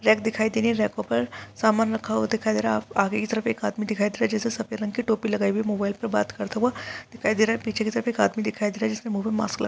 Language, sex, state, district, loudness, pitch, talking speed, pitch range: Hindi, male, Telangana, Nalgonda, -25 LUFS, 215 Hz, 320 wpm, 200-225 Hz